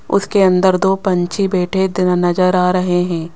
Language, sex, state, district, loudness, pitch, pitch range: Hindi, female, Rajasthan, Jaipur, -15 LUFS, 185 Hz, 180-190 Hz